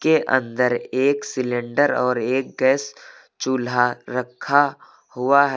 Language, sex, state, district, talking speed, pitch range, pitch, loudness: Hindi, male, Uttar Pradesh, Lucknow, 120 wpm, 125-140 Hz, 130 Hz, -21 LUFS